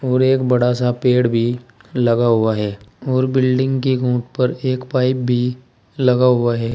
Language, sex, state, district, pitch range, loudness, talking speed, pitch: Hindi, male, Uttar Pradesh, Saharanpur, 120-130 Hz, -17 LUFS, 170 wpm, 125 Hz